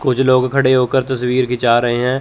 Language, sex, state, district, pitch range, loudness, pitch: Hindi, male, Chandigarh, Chandigarh, 125-130 Hz, -15 LUFS, 130 Hz